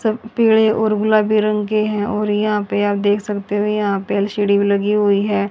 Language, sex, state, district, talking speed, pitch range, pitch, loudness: Hindi, female, Haryana, Charkhi Dadri, 230 wpm, 205-215 Hz, 210 Hz, -17 LUFS